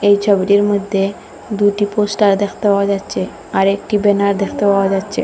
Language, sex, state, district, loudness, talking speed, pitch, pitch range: Bengali, female, Assam, Hailakandi, -15 LUFS, 160 wpm, 200 Hz, 200-205 Hz